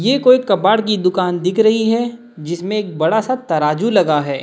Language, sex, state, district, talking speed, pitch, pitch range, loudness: Hindi, male, Chhattisgarh, Raipur, 200 wpm, 210 Hz, 170-230 Hz, -16 LUFS